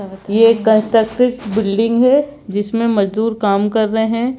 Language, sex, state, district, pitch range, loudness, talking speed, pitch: Hindi, male, Madhya Pradesh, Bhopal, 205-230 Hz, -15 LUFS, 135 wpm, 220 Hz